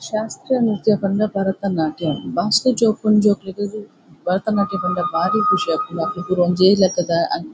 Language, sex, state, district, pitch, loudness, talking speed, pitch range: Tulu, female, Karnataka, Dakshina Kannada, 200 Hz, -19 LUFS, 120 wpm, 180-215 Hz